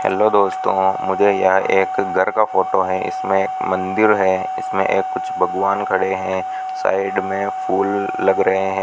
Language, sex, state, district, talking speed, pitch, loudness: Hindi, male, Rajasthan, Bikaner, 170 wpm, 95 Hz, -18 LUFS